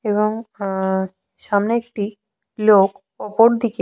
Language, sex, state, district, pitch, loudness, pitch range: Bengali, female, West Bengal, Jhargram, 210 Hz, -19 LUFS, 200-225 Hz